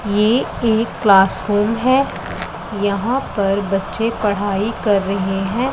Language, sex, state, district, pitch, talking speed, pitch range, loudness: Hindi, female, Punjab, Pathankot, 205 Hz, 115 wpm, 195-230 Hz, -18 LUFS